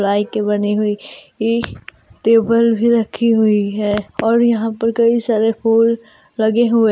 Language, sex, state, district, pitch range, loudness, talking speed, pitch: Hindi, female, Jharkhand, Garhwa, 210-230 Hz, -16 LUFS, 155 wpm, 225 Hz